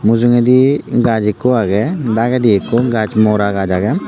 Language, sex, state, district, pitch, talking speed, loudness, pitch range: Chakma, male, Tripura, Unakoti, 115 Hz, 160 wpm, -13 LUFS, 105-125 Hz